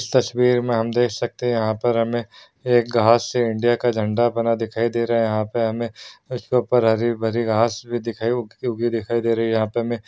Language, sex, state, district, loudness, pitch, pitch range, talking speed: Hindi, male, Chhattisgarh, Sukma, -21 LUFS, 115 Hz, 115-120 Hz, 245 wpm